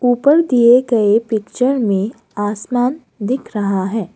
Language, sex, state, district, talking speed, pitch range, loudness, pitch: Hindi, female, Assam, Kamrup Metropolitan, 130 wpm, 205-250 Hz, -16 LUFS, 230 Hz